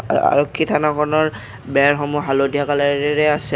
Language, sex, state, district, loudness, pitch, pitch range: Assamese, male, Assam, Kamrup Metropolitan, -18 LUFS, 145 Hz, 140-150 Hz